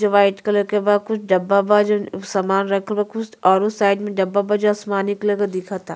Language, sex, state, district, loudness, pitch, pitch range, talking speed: Bhojpuri, female, Uttar Pradesh, Ghazipur, -19 LUFS, 205 Hz, 195-210 Hz, 240 wpm